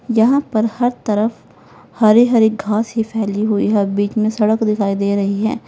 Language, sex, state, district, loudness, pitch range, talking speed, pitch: Hindi, female, Uttar Pradesh, Lalitpur, -16 LUFS, 210-230 Hz, 190 wpm, 215 Hz